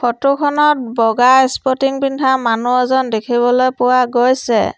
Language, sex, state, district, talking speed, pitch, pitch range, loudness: Assamese, female, Assam, Sonitpur, 125 wpm, 255 Hz, 240-265 Hz, -14 LUFS